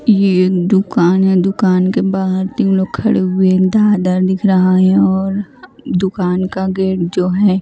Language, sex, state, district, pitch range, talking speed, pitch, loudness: Hindi, female, Maharashtra, Mumbai Suburban, 185-195 Hz, 155 wpm, 190 Hz, -14 LUFS